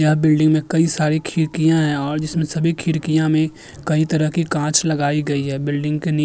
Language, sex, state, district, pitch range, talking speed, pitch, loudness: Hindi, male, Uttar Pradesh, Jyotiba Phule Nagar, 150-160 Hz, 220 wpm, 155 Hz, -18 LUFS